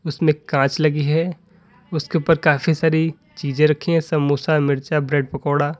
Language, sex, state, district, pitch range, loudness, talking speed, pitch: Hindi, male, Uttar Pradesh, Lalitpur, 145-165 Hz, -19 LUFS, 155 wpm, 155 Hz